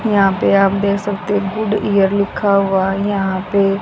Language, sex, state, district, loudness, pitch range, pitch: Hindi, female, Haryana, Jhajjar, -16 LUFS, 195-205 Hz, 200 Hz